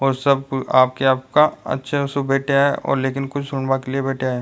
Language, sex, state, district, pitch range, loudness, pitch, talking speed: Rajasthani, male, Rajasthan, Nagaur, 130-140 Hz, -19 LUFS, 135 Hz, 165 wpm